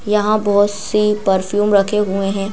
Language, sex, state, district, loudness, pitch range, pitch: Hindi, female, Madhya Pradesh, Bhopal, -16 LUFS, 195-210 Hz, 205 Hz